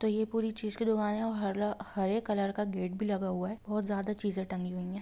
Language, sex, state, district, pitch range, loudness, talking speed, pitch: Hindi, female, Jharkhand, Jamtara, 195-215 Hz, -33 LUFS, 260 wpm, 210 Hz